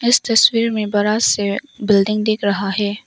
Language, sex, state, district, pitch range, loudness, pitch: Hindi, female, Arunachal Pradesh, Longding, 205-230 Hz, -16 LUFS, 210 Hz